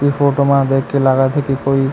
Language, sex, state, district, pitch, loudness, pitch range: Chhattisgarhi, male, Chhattisgarh, Kabirdham, 135 Hz, -15 LUFS, 135-140 Hz